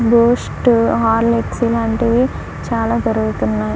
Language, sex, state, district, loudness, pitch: Telugu, female, Andhra Pradesh, Krishna, -16 LUFS, 230 Hz